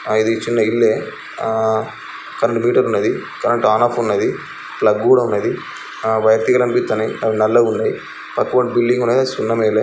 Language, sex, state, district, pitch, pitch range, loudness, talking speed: Telugu, male, Andhra Pradesh, Srikakulam, 110 Hz, 110-120 Hz, -17 LUFS, 160 wpm